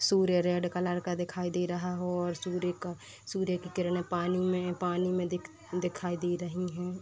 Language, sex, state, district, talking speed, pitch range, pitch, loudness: Hindi, female, Uttar Pradesh, Deoria, 195 wpm, 175-180 Hz, 180 Hz, -32 LUFS